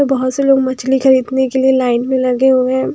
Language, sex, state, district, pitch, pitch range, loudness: Hindi, female, Bihar, Patna, 260 Hz, 255-265 Hz, -13 LUFS